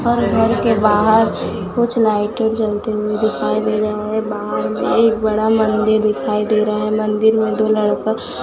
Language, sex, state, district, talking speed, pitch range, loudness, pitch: Hindi, female, Chhattisgarh, Raipur, 180 wpm, 210-220 Hz, -16 LUFS, 215 Hz